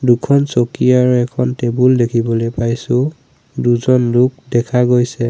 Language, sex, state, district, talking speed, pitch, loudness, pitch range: Assamese, male, Assam, Sonitpur, 125 wpm, 125 Hz, -15 LUFS, 120-125 Hz